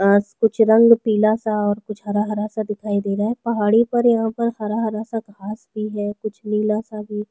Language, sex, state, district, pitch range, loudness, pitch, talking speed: Hindi, female, Chhattisgarh, Sukma, 210-225 Hz, -20 LUFS, 215 Hz, 215 wpm